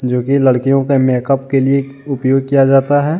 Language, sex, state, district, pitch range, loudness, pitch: Hindi, male, Jharkhand, Deoghar, 130-140 Hz, -13 LUFS, 135 Hz